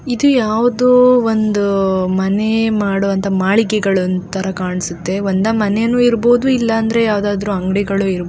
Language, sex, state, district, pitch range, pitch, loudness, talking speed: Kannada, female, Karnataka, Dakshina Kannada, 195-230 Hz, 205 Hz, -15 LUFS, 100 wpm